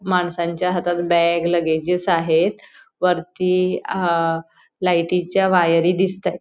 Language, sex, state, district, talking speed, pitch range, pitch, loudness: Marathi, female, Goa, North and South Goa, 105 wpm, 170-180 Hz, 175 Hz, -19 LUFS